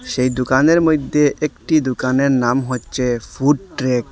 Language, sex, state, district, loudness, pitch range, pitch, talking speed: Bengali, male, Assam, Hailakandi, -17 LUFS, 130-150 Hz, 135 Hz, 145 wpm